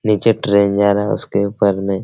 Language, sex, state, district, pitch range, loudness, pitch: Hindi, male, Bihar, Araria, 100-105 Hz, -16 LUFS, 100 Hz